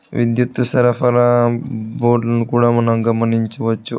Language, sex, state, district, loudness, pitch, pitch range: Telugu, male, Telangana, Hyderabad, -16 LUFS, 120 Hz, 115-120 Hz